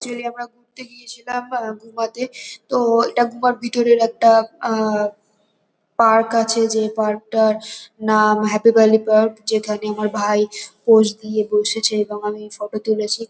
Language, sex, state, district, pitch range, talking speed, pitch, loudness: Bengali, female, West Bengal, North 24 Parganas, 215-235 Hz, 155 wpm, 220 Hz, -18 LUFS